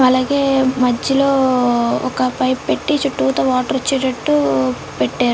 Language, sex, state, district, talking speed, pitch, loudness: Telugu, female, Andhra Pradesh, Chittoor, 110 wpm, 245 Hz, -16 LUFS